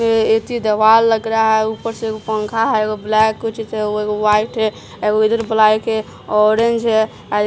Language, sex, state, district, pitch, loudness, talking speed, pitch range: Hindi, female, Bihar, Patna, 220 Hz, -16 LUFS, 145 wpm, 215-225 Hz